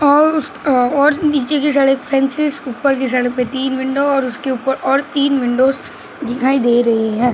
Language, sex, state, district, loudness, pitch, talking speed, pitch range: Hindi, male, Maharashtra, Mumbai Suburban, -16 LUFS, 270 Hz, 100 wpm, 250-285 Hz